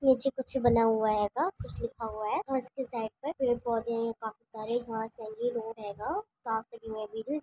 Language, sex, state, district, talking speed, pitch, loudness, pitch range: Hindi, female, Chhattisgarh, Kabirdham, 145 wpm, 230 Hz, -32 LUFS, 220-260 Hz